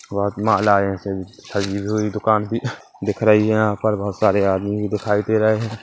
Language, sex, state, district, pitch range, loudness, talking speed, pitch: Hindi, male, Chhattisgarh, Kabirdham, 100-110 Hz, -19 LUFS, 205 wpm, 105 Hz